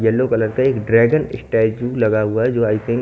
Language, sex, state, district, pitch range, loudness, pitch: Hindi, male, Haryana, Charkhi Dadri, 110-125 Hz, -17 LUFS, 115 Hz